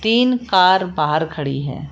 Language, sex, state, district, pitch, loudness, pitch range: Hindi, female, Jharkhand, Palamu, 170 Hz, -17 LUFS, 145-205 Hz